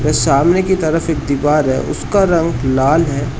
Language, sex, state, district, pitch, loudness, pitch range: Hindi, male, Uttar Pradesh, Shamli, 150 Hz, -14 LUFS, 140-165 Hz